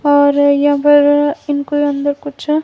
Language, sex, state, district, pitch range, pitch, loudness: Hindi, female, Himachal Pradesh, Shimla, 285-290 Hz, 290 Hz, -13 LUFS